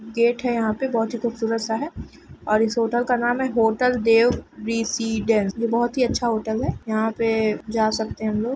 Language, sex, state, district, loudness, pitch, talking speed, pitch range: Hindi, female, Uttar Pradesh, Etah, -22 LUFS, 230 Hz, 210 wpm, 220-240 Hz